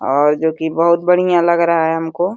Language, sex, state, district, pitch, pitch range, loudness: Hindi, female, Uttar Pradesh, Deoria, 170 Hz, 160-170 Hz, -15 LUFS